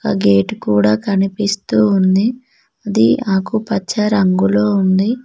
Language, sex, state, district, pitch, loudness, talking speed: Telugu, female, Telangana, Mahabubabad, 195 Hz, -15 LUFS, 105 wpm